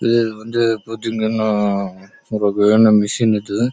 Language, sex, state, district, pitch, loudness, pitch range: Tamil, male, Karnataka, Chamarajanagar, 110 Hz, -17 LUFS, 105-115 Hz